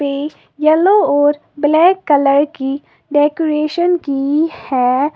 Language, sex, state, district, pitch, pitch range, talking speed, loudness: Hindi, female, Uttar Pradesh, Lalitpur, 290 Hz, 280-315 Hz, 105 wpm, -14 LUFS